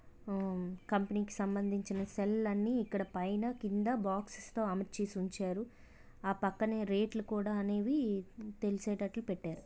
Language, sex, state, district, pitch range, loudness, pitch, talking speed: Telugu, female, Andhra Pradesh, Visakhapatnam, 195-220 Hz, -37 LUFS, 205 Hz, 130 wpm